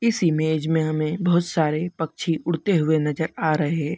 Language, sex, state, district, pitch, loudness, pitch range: Hindi, male, Bihar, Begusarai, 160 Hz, -22 LUFS, 155-170 Hz